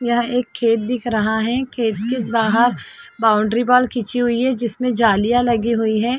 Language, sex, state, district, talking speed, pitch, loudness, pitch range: Hindi, female, Chhattisgarh, Sarguja, 195 wpm, 235 Hz, -18 LUFS, 225-245 Hz